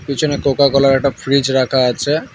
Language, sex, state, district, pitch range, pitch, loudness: Bengali, male, West Bengal, Alipurduar, 135-140 Hz, 140 Hz, -15 LUFS